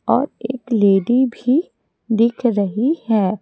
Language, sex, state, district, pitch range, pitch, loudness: Hindi, female, Chhattisgarh, Raipur, 215-250 Hz, 235 Hz, -18 LUFS